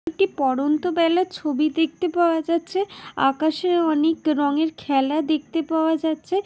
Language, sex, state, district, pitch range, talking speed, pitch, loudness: Bengali, female, West Bengal, Dakshin Dinajpur, 300-340 Hz, 130 wpm, 320 Hz, -22 LUFS